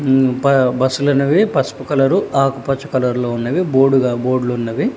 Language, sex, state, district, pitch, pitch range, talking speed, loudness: Telugu, male, Telangana, Hyderabad, 135 Hz, 125-140 Hz, 155 wpm, -16 LUFS